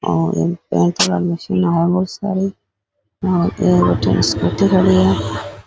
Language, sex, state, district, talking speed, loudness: Rajasthani, male, Rajasthan, Nagaur, 40 wpm, -16 LUFS